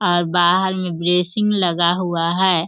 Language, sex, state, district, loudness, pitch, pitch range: Hindi, female, Bihar, Sitamarhi, -16 LUFS, 175 Hz, 175-185 Hz